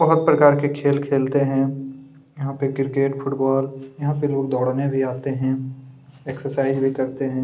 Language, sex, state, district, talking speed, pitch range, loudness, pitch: Hindi, male, Chhattisgarh, Kabirdham, 170 wpm, 135-140 Hz, -21 LUFS, 135 Hz